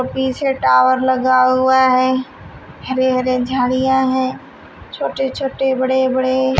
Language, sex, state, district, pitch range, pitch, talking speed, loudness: Hindi, female, Uttar Pradesh, Shamli, 255-260 Hz, 260 Hz, 120 wpm, -16 LUFS